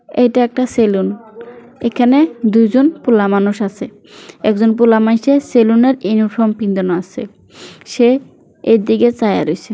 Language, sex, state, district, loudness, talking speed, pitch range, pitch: Bengali, female, West Bengal, Kolkata, -13 LUFS, 90 wpm, 215-245 Hz, 225 Hz